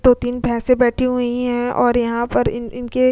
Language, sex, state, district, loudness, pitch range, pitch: Hindi, female, Uttar Pradesh, Jyotiba Phule Nagar, -18 LUFS, 240-250 Hz, 245 Hz